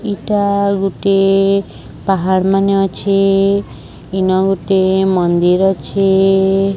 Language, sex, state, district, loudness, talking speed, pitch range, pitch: Odia, male, Odisha, Sambalpur, -14 LUFS, 80 wpm, 190-195 Hz, 195 Hz